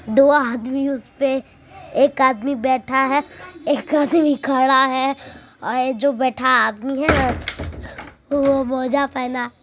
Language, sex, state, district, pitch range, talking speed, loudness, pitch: Maithili, male, Bihar, Supaul, 260-280 Hz, 120 wpm, -19 LUFS, 270 Hz